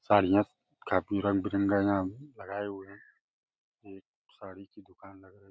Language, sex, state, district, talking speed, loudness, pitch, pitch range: Hindi, male, Uttar Pradesh, Deoria, 165 wpm, -30 LUFS, 100 Hz, 95-100 Hz